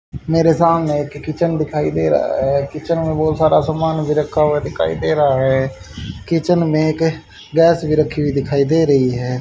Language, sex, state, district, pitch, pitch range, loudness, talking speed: Hindi, male, Haryana, Charkhi Dadri, 150 Hz, 135-160 Hz, -16 LUFS, 200 wpm